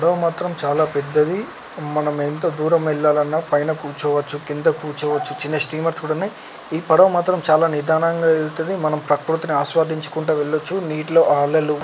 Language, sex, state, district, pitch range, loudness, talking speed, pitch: Telugu, male, Telangana, Karimnagar, 150-165 Hz, -19 LUFS, 150 wpm, 155 Hz